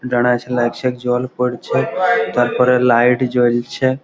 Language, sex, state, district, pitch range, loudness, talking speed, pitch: Bengali, male, West Bengal, Malda, 120-125 Hz, -16 LUFS, 135 wpm, 125 Hz